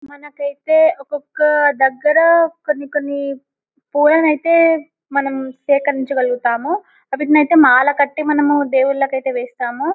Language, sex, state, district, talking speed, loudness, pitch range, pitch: Telugu, female, Telangana, Karimnagar, 90 wpm, -15 LUFS, 275-305 Hz, 290 Hz